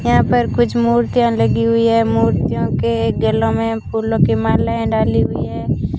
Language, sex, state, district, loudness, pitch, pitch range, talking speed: Hindi, female, Rajasthan, Bikaner, -16 LUFS, 115 Hz, 110-120 Hz, 170 wpm